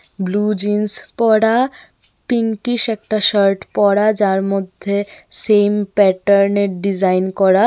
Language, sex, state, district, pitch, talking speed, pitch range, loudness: Bengali, female, Tripura, West Tripura, 205 Hz, 100 wpm, 195-215 Hz, -15 LUFS